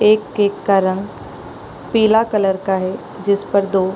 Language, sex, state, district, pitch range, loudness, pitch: Hindi, female, Bihar, East Champaran, 190-210 Hz, -17 LUFS, 200 Hz